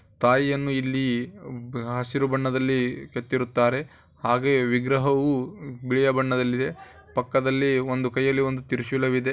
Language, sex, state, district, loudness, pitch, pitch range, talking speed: Kannada, male, Karnataka, Bijapur, -24 LUFS, 130 Hz, 125-135 Hz, 90 wpm